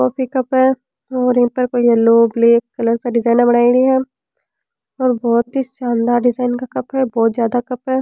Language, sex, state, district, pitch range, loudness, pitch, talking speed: Rajasthani, female, Rajasthan, Churu, 235-255 Hz, -15 LUFS, 245 Hz, 185 wpm